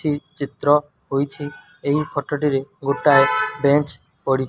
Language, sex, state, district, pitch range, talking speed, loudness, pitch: Odia, male, Odisha, Malkangiri, 140-150 Hz, 135 wpm, -20 LUFS, 145 Hz